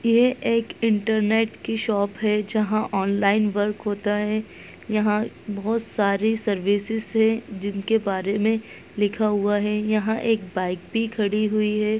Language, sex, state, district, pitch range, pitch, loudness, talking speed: Hindi, male, Bihar, Muzaffarpur, 205-220 Hz, 215 Hz, -23 LUFS, 145 wpm